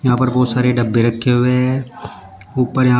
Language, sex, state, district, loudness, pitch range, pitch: Hindi, male, Uttar Pradesh, Shamli, -16 LUFS, 120-125 Hz, 125 Hz